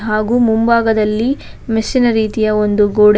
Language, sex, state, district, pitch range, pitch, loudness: Kannada, female, Karnataka, Bangalore, 210-230 Hz, 220 Hz, -14 LUFS